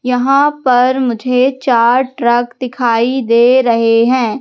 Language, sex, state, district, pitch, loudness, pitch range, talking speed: Hindi, female, Madhya Pradesh, Katni, 250 Hz, -12 LUFS, 235-260 Hz, 120 wpm